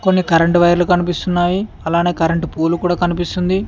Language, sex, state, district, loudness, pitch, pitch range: Telugu, male, Telangana, Mahabubabad, -16 LUFS, 175 Hz, 170-180 Hz